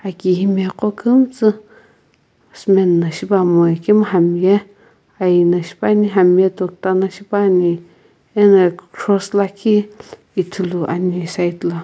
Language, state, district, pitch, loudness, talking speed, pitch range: Sumi, Nagaland, Kohima, 190 Hz, -16 LUFS, 115 wpm, 180-205 Hz